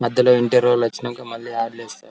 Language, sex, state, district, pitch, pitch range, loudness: Telugu, male, Telangana, Karimnagar, 120 Hz, 115-125 Hz, -19 LUFS